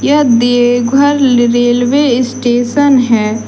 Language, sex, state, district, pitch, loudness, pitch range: Hindi, female, Jharkhand, Deoghar, 245 Hz, -10 LUFS, 240-275 Hz